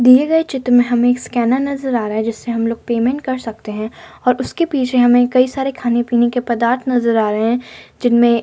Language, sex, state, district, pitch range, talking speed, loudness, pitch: Hindi, female, Uttar Pradesh, Hamirpur, 235-255 Hz, 230 wpm, -16 LUFS, 245 Hz